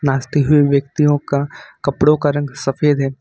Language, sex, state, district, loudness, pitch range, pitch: Hindi, male, Jharkhand, Ranchi, -16 LUFS, 135-145 Hz, 145 Hz